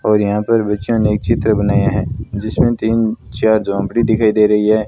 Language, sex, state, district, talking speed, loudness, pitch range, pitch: Hindi, male, Rajasthan, Bikaner, 210 wpm, -15 LUFS, 105-110 Hz, 110 Hz